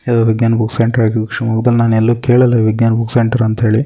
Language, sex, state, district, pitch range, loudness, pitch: Kannada, male, Karnataka, Shimoga, 110-120 Hz, -13 LUFS, 115 Hz